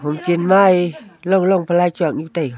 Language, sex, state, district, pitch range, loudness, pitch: Wancho, female, Arunachal Pradesh, Longding, 165-190 Hz, -16 LUFS, 175 Hz